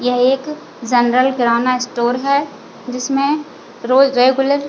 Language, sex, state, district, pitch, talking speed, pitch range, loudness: Hindi, female, Chhattisgarh, Bilaspur, 255 Hz, 130 wpm, 245-275 Hz, -15 LUFS